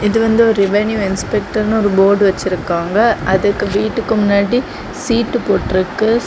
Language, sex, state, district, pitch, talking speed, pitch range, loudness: Tamil, female, Tamil Nadu, Kanyakumari, 210 Hz, 125 wpm, 200-225 Hz, -15 LUFS